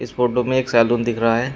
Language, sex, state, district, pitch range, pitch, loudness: Hindi, male, Uttar Pradesh, Shamli, 115-125 Hz, 120 Hz, -18 LUFS